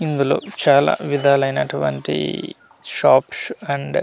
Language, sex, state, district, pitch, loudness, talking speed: Telugu, male, Andhra Pradesh, Manyam, 140 Hz, -18 LUFS, 105 wpm